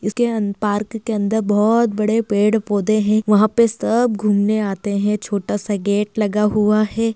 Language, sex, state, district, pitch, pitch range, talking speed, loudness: Hindi, female, Bihar, Bhagalpur, 210 Hz, 205-220 Hz, 185 wpm, -18 LUFS